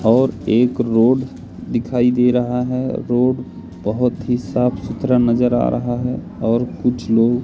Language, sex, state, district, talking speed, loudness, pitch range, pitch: Hindi, male, Madhya Pradesh, Katni, 155 wpm, -18 LUFS, 120-125 Hz, 125 Hz